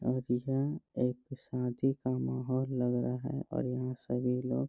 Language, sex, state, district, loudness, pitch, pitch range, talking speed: Hindi, male, Bihar, Bhagalpur, -34 LUFS, 125 Hz, 125-130 Hz, 180 wpm